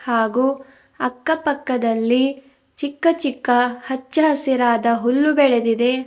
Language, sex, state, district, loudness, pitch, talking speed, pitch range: Kannada, female, Karnataka, Bidar, -18 LUFS, 260 Hz, 80 wpm, 245-285 Hz